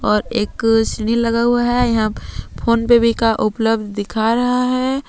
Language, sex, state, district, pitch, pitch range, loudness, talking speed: Hindi, female, Jharkhand, Palamu, 230 Hz, 220-240 Hz, -17 LUFS, 175 wpm